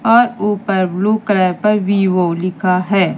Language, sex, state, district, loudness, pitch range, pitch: Hindi, female, Madhya Pradesh, Katni, -15 LUFS, 185-210 Hz, 195 Hz